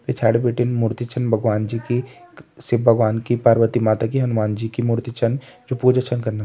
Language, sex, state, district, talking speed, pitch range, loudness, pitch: Hindi, male, Uttarakhand, Tehri Garhwal, 205 wpm, 115-120 Hz, -20 LUFS, 120 Hz